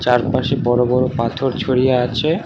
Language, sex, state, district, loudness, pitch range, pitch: Bengali, male, West Bengal, Alipurduar, -17 LUFS, 125-130 Hz, 125 Hz